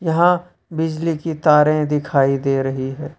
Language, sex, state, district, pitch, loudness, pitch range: Hindi, male, Jharkhand, Ranchi, 155 Hz, -18 LUFS, 140-165 Hz